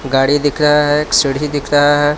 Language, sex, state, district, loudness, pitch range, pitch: Hindi, male, Jharkhand, Palamu, -13 LUFS, 145-150 Hz, 145 Hz